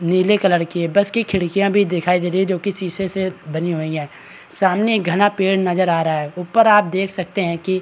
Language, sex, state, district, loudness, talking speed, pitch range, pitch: Hindi, male, Bihar, Araria, -18 LUFS, 260 wpm, 175-200 Hz, 185 Hz